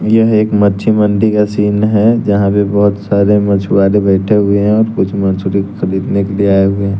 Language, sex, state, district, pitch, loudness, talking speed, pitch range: Hindi, male, Bihar, West Champaran, 100 Hz, -12 LUFS, 205 wpm, 100-105 Hz